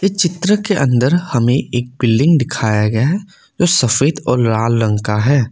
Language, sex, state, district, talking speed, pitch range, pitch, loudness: Hindi, male, Assam, Kamrup Metropolitan, 175 wpm, 115-175 Hz, 130 Hz, -15 LUFS